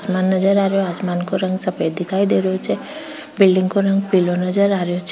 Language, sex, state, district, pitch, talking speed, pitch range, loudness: Rajasthani, female, Rajasthan, Churu, 190 Hz, 235 wpm, 185-195 Hz, -18 LUFS